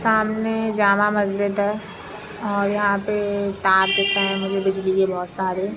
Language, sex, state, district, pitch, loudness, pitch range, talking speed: Hindi, female, Chhattisgarh, Raigarh, 200 Hz, -21 LUFS, 195-210 Hz, 165 wpm